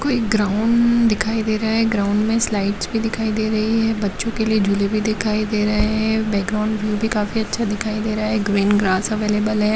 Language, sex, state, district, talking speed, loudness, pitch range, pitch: Hindi, female, Jharkhand, Jamtara, 215 wpm, -19 LUFS, 210-220 Hz, 215 Hz